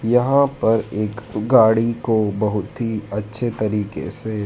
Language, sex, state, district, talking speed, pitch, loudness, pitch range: Hindi, male, Madhya Pradesh, Dhar, 135 wpm, 110 Hz, -20 LUFS, 105-115 Hz